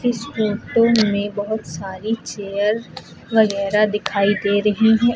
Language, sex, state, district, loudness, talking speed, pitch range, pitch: Hindi, female, Uttar Pradesh, Lucknow, -19 LUFS, 130 wpm, 200-225 Hz, 210 Hz